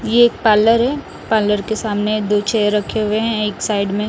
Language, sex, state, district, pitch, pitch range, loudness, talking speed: Hindi, male, Odisha, Nuapada, 215 Hz, 210-225 Hz, -16 LUFS, 220 wpm